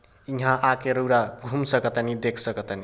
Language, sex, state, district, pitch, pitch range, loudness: Bhojpuri, male, Bihar, East Champaran, 120 Hz, 115-130 Hz, -24 LUFS